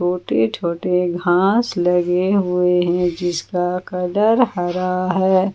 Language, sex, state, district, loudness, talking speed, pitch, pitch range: Hindi, female, Jharkhand, Ranchi, -18 LUFS, 110 wpm, 180 Hz, 175-185 Hz